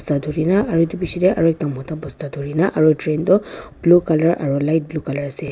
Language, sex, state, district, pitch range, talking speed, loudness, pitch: Nagamese, female, Nagaland, Dimapur, 145-175 Hz, 215 wpm, -18 LUFS, 155 Hz